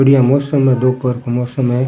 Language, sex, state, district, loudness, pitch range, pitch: Rajasthani, male, Rajasthan, Churu, -15 LUFS, 125-135 Hz, 130 Hz